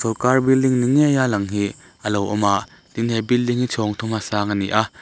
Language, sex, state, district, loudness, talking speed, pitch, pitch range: Mizo, male, Mizoram, Aizawl, -20 LUFS, 265 wpm, 110 Hz, 105-125 Hz